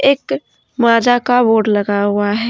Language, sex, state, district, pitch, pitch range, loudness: Hindi, female, Jharkhand, Deoghar, 230 Hz, 205-245 Hz, -14 LUFS